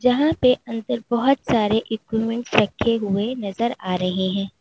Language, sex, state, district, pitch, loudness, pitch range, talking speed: Hindi, female, Uttar Pradesh, Lalitpur, 225 Hz, -21 LUFS, 205-245 Hz, 155 wpm